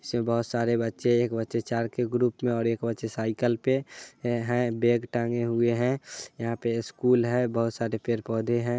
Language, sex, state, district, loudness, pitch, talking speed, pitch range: Hindi, male, Bihar, Muzaffarpur, -27 LUFS, 120 Hz, 200 wpm, 115-120 Hz